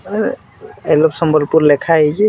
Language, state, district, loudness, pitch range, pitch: Sambalpuri, Odisha, Sambalpur, -14 LUFS, 150-160 Hz, 155 Hz